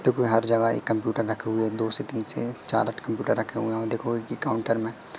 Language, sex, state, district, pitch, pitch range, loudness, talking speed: Hindi, male, Madhya Pradesh, Katni, 115 Hz, 110-115 Hz, -25 LUFS, 240 wpm